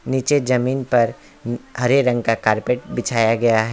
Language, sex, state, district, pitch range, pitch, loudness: Hindi, male, West Bengal, Alipurduar, 115-130 Hz, 120 Hz, -19 LUFS